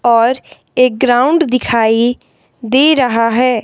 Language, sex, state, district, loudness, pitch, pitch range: Hindi, female, Himachal Pradesh, Shimla, -12 LUFS, 245 Hz, 230-260 Hz